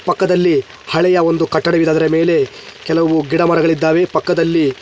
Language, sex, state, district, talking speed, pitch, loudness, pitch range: Kannada, male, Karnataka, Chamarajanagar, 135 wpm, 165 Hz, -14 LUFS, 160-175 Hz